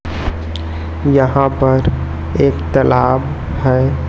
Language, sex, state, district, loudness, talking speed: Hindi, male, Chhattisgarh, Raipur, -15 LUFS, 75 wpm